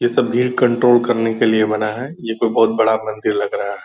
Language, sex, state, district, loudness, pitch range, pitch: Hindi, male, Bihar, Purnia, -17 LUFS, 110-120 Hz, 115 Hz